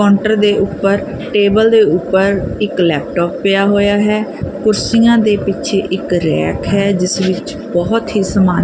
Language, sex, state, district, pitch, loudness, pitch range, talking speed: Punjabi, female, Punjab, Kapurthala, 200 Hz, -13 LUFS, 185-210 Hz, 155 wpm